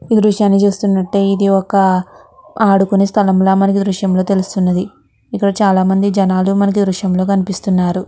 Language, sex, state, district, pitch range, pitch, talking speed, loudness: Telugu, female, Andhra Pradesh, Guntur, 190-200 Hz, 195 Hz, 155 wpm, -14 LUFS